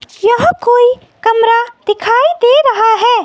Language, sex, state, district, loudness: Hindi, female, Himachal Pradesh, Shimla, -11 LUFS